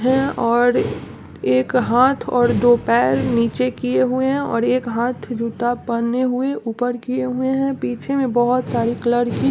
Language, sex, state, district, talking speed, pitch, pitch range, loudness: Hindi, female, Bihar, East Champaran, 170 wpm, 240 Hz, 230-255 Hz, -19 LUFS